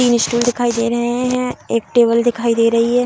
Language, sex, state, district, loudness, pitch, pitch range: Hindi, female, Bihar, Darbhanga, -16 LUFS, 240 Hz, 230-245 Hz